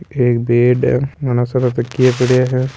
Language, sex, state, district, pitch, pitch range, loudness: Marwari, male, Rajasthan, Nagaur, 125 Hz, 125-130 Hz, -15 LUFS